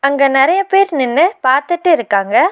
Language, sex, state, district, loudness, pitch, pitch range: Tamil, female, Tamil Nadu, Nilgiris, -13 LUFS, 280 Hz, 265-355 Hz